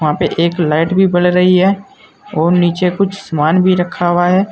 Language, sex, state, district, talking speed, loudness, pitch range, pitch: Hindi, male, Uttar Pradesh, Saharanpur, 210 wpm, -13 LUFS, 170-190 Hz, 180 Hz